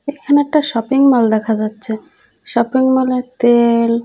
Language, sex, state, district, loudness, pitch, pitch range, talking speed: Bengali, female, Odisha, Malkangiri, -14 LUFS, 245 Hz, 230-270 Hz, 120 wpm